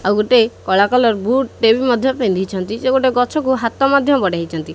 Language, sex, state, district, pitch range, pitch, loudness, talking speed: Odia, male, Odisha, Khordha, 200-260 Hz, 235 Hz, -15 LUFS, 175 wpm